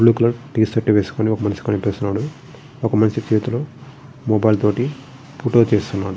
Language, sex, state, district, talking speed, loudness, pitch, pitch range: Telugu, male, Andhra Pradesh, Srikakulam, 135 wpm, -19 LUFS, 115 Hz, 105-135 Hz